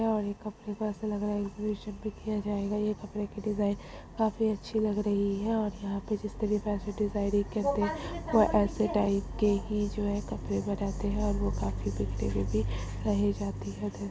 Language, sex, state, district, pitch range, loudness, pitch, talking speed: Magahi, female, Bihar, Gaya, 200-210 Hz, -31 LUFS, 205 Hz, 155 wpm